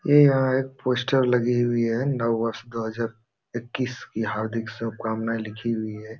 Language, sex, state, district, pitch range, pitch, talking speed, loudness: Hindi, male, Uttar Pradesh, Jalaun, 110-125 Hz, 115 Hz, 175 wpm, -25 LUFS